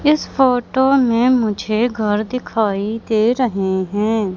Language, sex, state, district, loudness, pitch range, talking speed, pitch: Hindi, female, Madhya Pradesh, Katni, -17 LUFS, 210-250 Hz, 125 wpm, 225 Hz